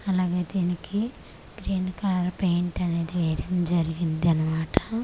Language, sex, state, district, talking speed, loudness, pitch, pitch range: Telugu, female, Andhra Pradesh, Manyam, 105 wpm, -26 LUFS, 180 Hz, 170-185 Hz